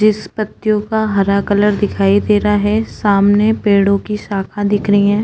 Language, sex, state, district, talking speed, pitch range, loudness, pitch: Hindi, female, Uttarakhand, Tehri Garhwal, 185 wpm, 200-215 Hz, -14 LUFS, 205 Hz